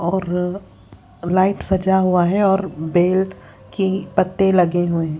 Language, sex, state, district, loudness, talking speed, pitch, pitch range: Hindi, female, Haryana, Charkhi Dadri, -18 LUFS, 140 wpm, 185 Hz, 175-190 Hz